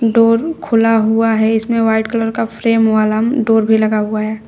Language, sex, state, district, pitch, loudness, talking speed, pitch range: Hindi, female, Uttar Pradesh, Shamli, 225 Hz, -14 LUFS, 200 wpm, 220-230 Hz